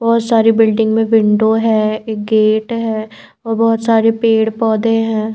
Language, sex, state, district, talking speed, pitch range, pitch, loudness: Hindi, female, Bihar, Patna, 170 wpm, 220-225 Hz, 225 Hz, -14 LUFS